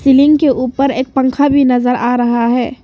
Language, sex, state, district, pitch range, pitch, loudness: Hindi, female, Arunachal Pradesh, Papum Pare, 245-275 Hz, 260 Hz, -12 LUFS